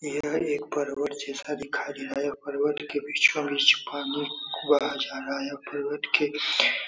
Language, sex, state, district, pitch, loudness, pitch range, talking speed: Hindi, male, Bihar, Saran, 145 Hz, -26 LUFS, 140-145 Hz, 175 wpm